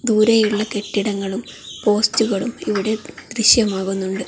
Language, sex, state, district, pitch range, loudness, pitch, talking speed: Malayalam, female, Kerala, Kozhikode, 200-225 Hz, -18 LUFS, 210 Hz, 70 wpm